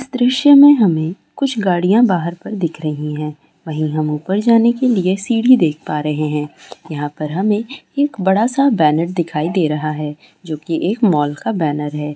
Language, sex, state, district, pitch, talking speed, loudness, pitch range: Maithili, female, Bihar, Sitamarhi, 170 Hz, 190 wpm, -16 LUFS, 150-220 Hz